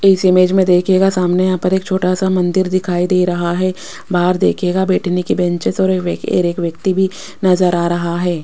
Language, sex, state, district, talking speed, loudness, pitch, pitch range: Hindi, female, Rajasthan, Jaipur, 200 wpm, -15 LUFS, 185 Hz, 175-185 Hz